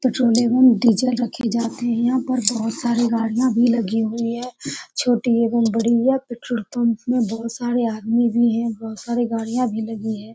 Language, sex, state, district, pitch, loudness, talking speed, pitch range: Hindi, female, Bihar, Saran, 235 Hz, -20 LUFS, 205 wpm, 230-245 Hz